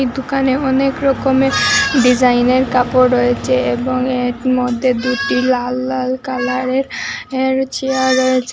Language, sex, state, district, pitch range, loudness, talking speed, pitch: Bengali, female, Assam, Hailakandi, 250-265 Hz, -15 LUFS, 100 wpm, 260 Hz